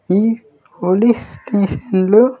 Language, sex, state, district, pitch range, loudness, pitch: Telugu, male, Andhra Pradesh, Sri Satya Sai, 190-230 Hz, -16 LUFS, 210 Hz